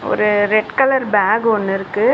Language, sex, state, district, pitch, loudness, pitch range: Tamil, female, Tamil Nadu, Chennai, 215 Hz, -16 LUFS, 205-225 Hz